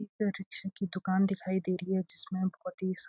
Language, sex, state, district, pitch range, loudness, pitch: Hindi, female, Uttarakhand, Uttarkashi, 185-195 Hz, -33 LUFS, 190 Hz